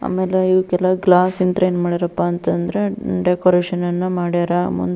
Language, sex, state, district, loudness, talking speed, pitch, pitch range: Kannada, female, Karnataka, Belgaum, -18 LUFS, 155 wpm, 180 Hz, 175-185 Hz